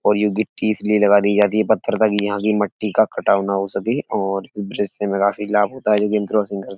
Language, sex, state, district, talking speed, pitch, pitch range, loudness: Hindi, male, Uttar Pradesh, Etah, 230 wpm, 105 Hz, 100-105 Hz, -19 LUFS